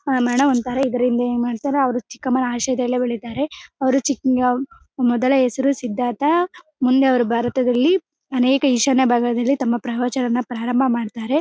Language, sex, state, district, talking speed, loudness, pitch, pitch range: Kannada, female, Karnataka, Bellary, 115 wpm, -19 LUFS, 255 Hz, 245-270 Hz